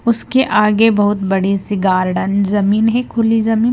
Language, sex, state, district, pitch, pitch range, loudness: Hindi, female, Himachal Pradesh, Shimla, 210 Hz, 195-225 Hz, -14 LUFS